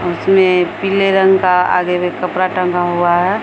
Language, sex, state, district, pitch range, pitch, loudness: Hindi, female, Bihar, Samastipur, 180-190 Hz, 180 Hz, -14 LUFS